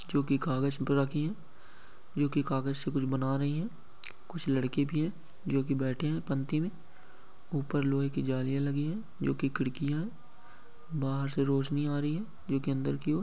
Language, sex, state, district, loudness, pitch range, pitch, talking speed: Hindi, male, West Bengal, Malda, -32 LUFS, 135-155 Hz, 140 Hz, 180 wpm